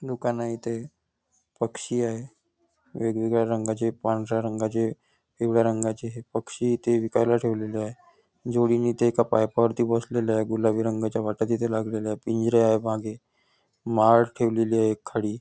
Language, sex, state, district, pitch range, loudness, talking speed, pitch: Marathi, male, Maharashtra, Nagpur, 110-120 Hz, -25 LUFS, 130 wpm, 115 Hz